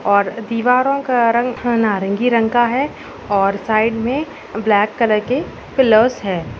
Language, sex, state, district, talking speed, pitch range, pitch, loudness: Hindi, female, Uttar Pradesh, Gorakhpur, 155 wpm, 205-245 Hz, 230 Hz, -17 LUFS